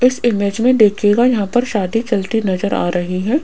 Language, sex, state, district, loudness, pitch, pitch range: Hindi, female, Rajasthan, Jaipur, -16 LUFS, 215 Hz, 200-245 Hz